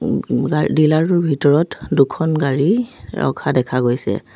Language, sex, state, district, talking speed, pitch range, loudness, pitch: Assamese, female, Assam, Sonitpur, 150 wpm, 130-160 Hz, -17 LUFS, 145 Hz